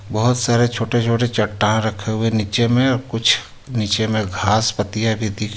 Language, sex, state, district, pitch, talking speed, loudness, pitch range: Hindi, male, Jharkhand, Ranchi, 110 Hz, 185 wpm, -18 LUFS, 105-120 Hz